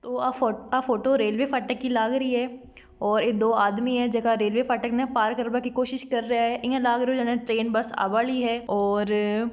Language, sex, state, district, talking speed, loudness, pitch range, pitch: Marwari, female, Rajasthan, Nagaur, 235 wpm, -24 LUFS, 225-250 Hz, 240 Hz